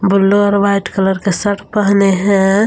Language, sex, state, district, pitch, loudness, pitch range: Hindi, female, Jharkhand, Palamu, 200 Hz, -13 LUFS, 195-205 Hz